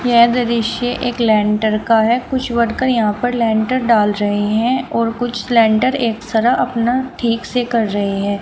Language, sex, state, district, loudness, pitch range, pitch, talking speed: Hindi, female, Uttar Pradesh, Shamli, -16 LUFS, 220-245 Hz, 235 Hz, 180 wpm